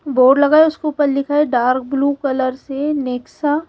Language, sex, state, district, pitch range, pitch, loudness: Hindi, female, Haryana, Charkhi Dadri, 260-295 Hz, 280 Hz, -16 LUFS